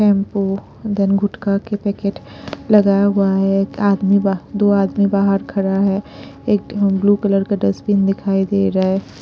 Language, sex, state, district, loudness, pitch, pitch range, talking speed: Hindi, female, Punjab, Pathankot, -17 LUFS, 200 Hz, 195-205 Hz, 150 wpm